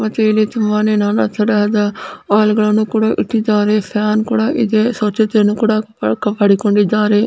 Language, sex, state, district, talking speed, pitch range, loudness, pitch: Kannada, male, Karnataka, Belgaum, 125 wpm, 210-220 Hz, -15 LUFS, 215 Hz